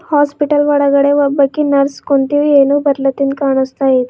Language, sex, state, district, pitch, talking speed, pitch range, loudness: Kannada, female, Karnataka, Bidar, 280 Hz, 130 wpm, 275-290 Hz, -13 LUFS